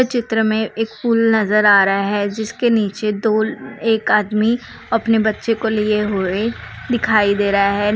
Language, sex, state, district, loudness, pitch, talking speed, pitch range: Hindi, female, Bihar, Saharsa, -17 LUFS, 220 Hz, 165 wpm, 205-225 Hz